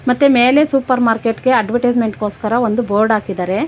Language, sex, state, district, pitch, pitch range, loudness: Kannada, female, Karnataka, Bangalore, 240 Hz, 215-255 Hz, -15 LUFS